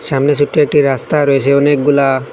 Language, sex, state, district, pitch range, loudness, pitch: Bengali, male, Assam, Hailakandi, 140-145 Hz, -12 LUFS, 145 Hz